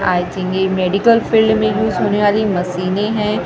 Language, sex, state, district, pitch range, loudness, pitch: Hindi, female, Maharashtra, Gondia, 185-215 Hz, -15 LUFS, 205 Hz